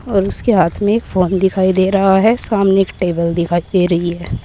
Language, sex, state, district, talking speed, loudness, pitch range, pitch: Hindi, female, Uttar Pradesh, Saharanpur, 230 wpm, -14 LUFS, 180-195 Hz, 190 Hz